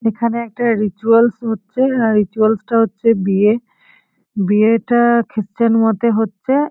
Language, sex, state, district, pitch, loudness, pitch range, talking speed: Bengali, female, West Bengal, Paschim Medinipur, 225 Hz, -15 LUFS, 215-235 Hz, 115 wpm